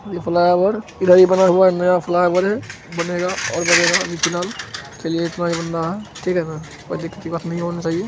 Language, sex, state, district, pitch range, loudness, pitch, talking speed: Hindi, male, Bihar, Begusarai, 170-180 Hz, -18 LUFS, 175 Hz, 185 wpm